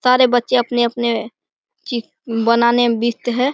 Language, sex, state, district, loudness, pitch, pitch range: Hindi, male, Bihar, Begusarai, -17 LUFS, 240 Hz, 235-250 Hz